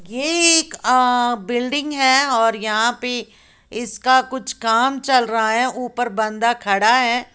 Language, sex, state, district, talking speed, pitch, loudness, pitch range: Hindi, female, Uttar Pradesh, Lalitpur, 140 wpm, 245 Hz, -17 LUFS, 230-260 Hz